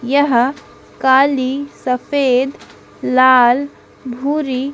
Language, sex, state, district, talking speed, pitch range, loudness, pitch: Hindi, female, Madhya Pradesh, Dhar, 65 wpm, 255-280 Hz, -15 LUFS, 265 Hz